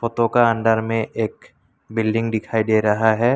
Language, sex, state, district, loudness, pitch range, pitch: Hindi, male, Assam, Kamrup Metropolitan, -20 LUFS, 110-115 Hz, 115 Hz